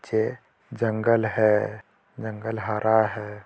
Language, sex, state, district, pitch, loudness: Hindi, male, Jharkhand, Jamtara, 110 Hz, -24 LUFS